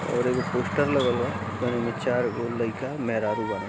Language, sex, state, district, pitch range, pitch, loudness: Hindi, male, Uttar Pradesh, Gorakhpur, 110-125 Hz, 120 Hz, -26 LUFS